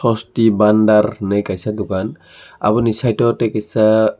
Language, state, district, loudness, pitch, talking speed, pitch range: Kokborok, Tripura, Dhalai, -16 LUFS, 110 Hz, 130 wpm, 105-115 Hz